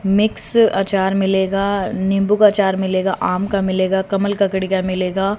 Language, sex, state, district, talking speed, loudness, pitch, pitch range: Hindi, female, Haryana, Rohtak, 155 wpm, -17 LUFS, 195 Hz, 190-200 Hz